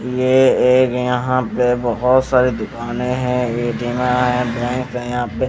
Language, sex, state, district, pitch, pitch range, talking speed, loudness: Hindi, male, Himachal Pradesh, Shimla, 125 Hz, 120-125 Hz, 140 wpm, -17 LUFS